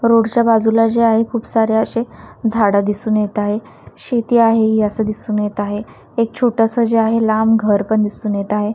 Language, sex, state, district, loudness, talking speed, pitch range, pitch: Marathi, female, Maharashtra, Washim, -16 LUFS, 200 wpm, 210-230 Hz, 220 Hz